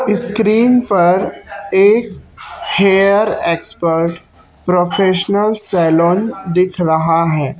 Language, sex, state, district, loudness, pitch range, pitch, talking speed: Hindi, male, Chhattisgarh, Raipur, -14 LUFS, 170-210 Hz, 190 Hz, 80 wpm